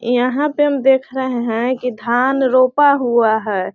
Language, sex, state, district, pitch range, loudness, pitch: Hindi, female, Bihar, Sitamarhi, 240-270 Hz, -16 LUFS, 255 Hz